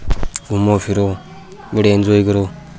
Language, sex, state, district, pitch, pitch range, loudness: Rajasthani, male, Rajasthan, Churu, 100 Hz, 100-105 Hz, -16 LUFS